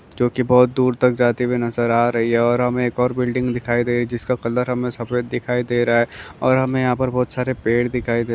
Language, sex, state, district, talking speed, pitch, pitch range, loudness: Hindi, male, Maharashtra, Nagpur, 245 wpm, 125 Hz, 120-125 Hz, -19 LUFS